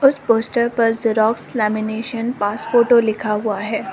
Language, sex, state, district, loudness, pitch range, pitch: Hindi, female, Arunachal Pradesh, Lower Dibang Valley, -18 LUFS, 215-235 Hz, 225 Hz